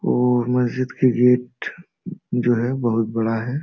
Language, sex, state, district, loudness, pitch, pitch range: Hindi, male, Bihar, Jamui, -20 LUFS, 125 Hz, 120-130 Hz